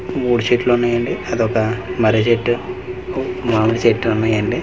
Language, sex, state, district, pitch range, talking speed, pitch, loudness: Telugu, male, Andhra Pradesh, Manyam, 110-120 Hz, 140 wpm, 115 Hz, -18 LUFS